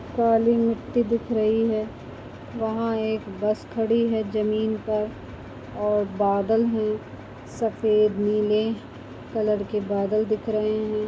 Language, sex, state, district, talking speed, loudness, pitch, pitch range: Hindi, female, Chhattisgarh, Bastar, 125 wpm, -24 LUFS, 215 Hz, 205-225 Hz